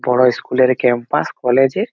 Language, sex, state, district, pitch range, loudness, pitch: Bengali, male, West Bengal, Malda, 125-135 Hz, -16 LUFS, 130 Hz